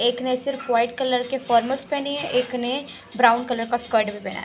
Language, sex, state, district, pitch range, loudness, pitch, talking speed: Hindi, female, Haryana, Charkhi Dadri, 235-265 Hz, -22 LUFS, 245 Hz, 245 wpm